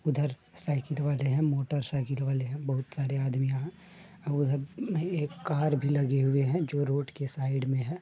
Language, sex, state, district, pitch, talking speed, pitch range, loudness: Hindi, male, Bihar, Madhepura, 145 Hz, 200 wpm, 135-150 Hz, -30 LUFS